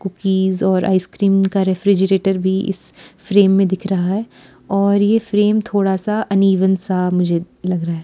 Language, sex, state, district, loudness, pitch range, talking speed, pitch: Hindi, female, Himachal Pradesh, Shimla, -16 LUFS, 185-200 Hz, 170 wpm, 195 Hz